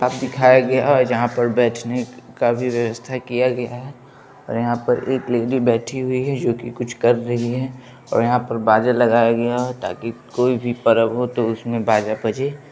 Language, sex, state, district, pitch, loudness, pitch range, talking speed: Hindi, male, Bihar, Begusarai, 120 Hz, -19 LUFS, 120-125 Hz, 200 wpm